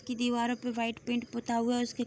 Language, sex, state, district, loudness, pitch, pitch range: Hindi, female, Bihar, Darbhanga, -32 LUFS, 240 Hz, 235-245 Hz